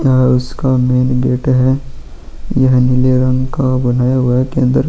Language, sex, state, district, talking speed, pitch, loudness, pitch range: Hindi, male, Chhattisgarh, Sukma, 170 wpm, 130 Hz, -13 LUFS, 125-130 Hz